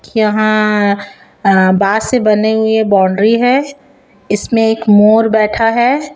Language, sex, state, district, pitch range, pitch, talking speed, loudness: Hindi, female, Chhattisgarh, Raipur, 205-230 Hz, 220 Hz, 115 wpm, -11 LUFS